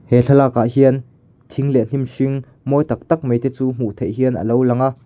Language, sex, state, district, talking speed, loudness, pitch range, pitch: Mizo, male, Mizoram, Aizawl, 235 wpm, -17 LUFS, 120-135 Hz, 130 Hz